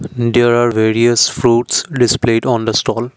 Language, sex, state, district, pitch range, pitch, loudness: English, male, Assam, Kamrup Metropolitan, 115-120 Hz, 120 Hz, -13 LUFS